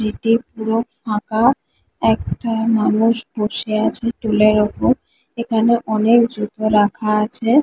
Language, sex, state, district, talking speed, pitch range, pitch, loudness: Bengali, female, West Bengal, Kolkata, 100 wpm, 215-235 Hz, 225 Hz, -18 LUFS